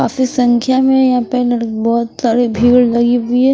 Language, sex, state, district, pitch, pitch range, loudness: Hindi, female, Himachal Pradesh, Shimla, 245 Hz, 235-255 Hz, -13 LUFS